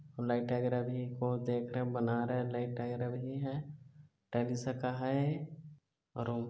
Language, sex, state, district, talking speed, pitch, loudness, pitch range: Chhattisgarhi, male, Chhattisgarh, Bilaspur, 155 wpm, 125 Hz, -36 LUFS, 120-135 Hz